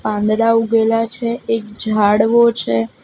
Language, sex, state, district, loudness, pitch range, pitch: Gujarati, female, Gujarat, Gandhinagar, -15 LUFS, 210-230 Hz, 225 Hz